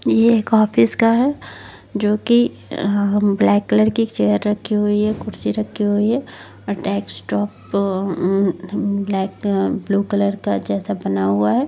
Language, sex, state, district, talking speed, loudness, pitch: Hindi, female, Bihar, Gopalganj, 160 wpm, -18 LUFS, 200 Hz